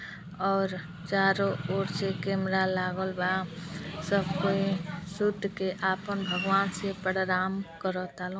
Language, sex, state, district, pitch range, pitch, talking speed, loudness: Bhojpuri, female, Uttar Pradesh, Deoria, 180-195 Hz, 190 Hz, 120 wpm, -30 LUFS